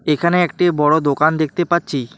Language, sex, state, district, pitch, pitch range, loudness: Bengali, male, West Bengal, Alipurduar, 155 Hz, 150-175 Hz, -16 LUFS